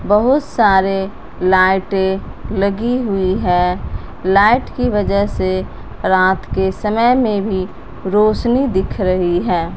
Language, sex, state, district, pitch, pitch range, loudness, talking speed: Hindi, female, Punjab, Fazilka, 190 Hz, 185-210 Hz, -16 LUFS, 115 wpm